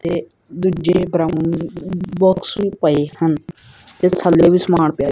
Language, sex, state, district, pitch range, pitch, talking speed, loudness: Punjabi, male, Punjab, Kapurthala, 165-185 Hz, 175 Hz, 130 wpm, -17 LUFS